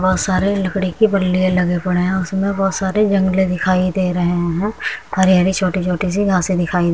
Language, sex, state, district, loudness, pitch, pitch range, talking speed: Hindi, female, Uttar Pradesh, Muzaffarnagar, -17 LUFS, 185 Hz, 180-190 Hz, 180 wpm